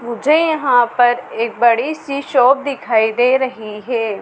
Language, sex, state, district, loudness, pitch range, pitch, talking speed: Hindi, female, Madhya Pradesh, Dhar, -15 LUFS, 235-275 Hz, 245 Hz, 155 wpm